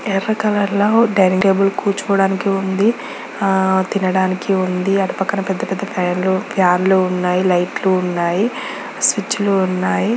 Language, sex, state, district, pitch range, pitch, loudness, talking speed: Telugu, female, Andhra Pradesh, Guntur, 185-200 Hz, 195 Hz, -17 LUFS, 140 wpm